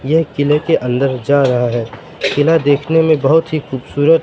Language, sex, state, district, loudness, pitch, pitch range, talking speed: Hindi, male, Madhya Pradesh, Katni, -14 LUFS, 145 Hz, 130-160 Hz, 185 wpm